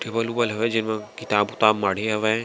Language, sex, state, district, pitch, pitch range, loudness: Chhattisgarhi, male, Chhattisgarh, Sarguja, 110 Hz, 105-115 Hz, -23 LUFS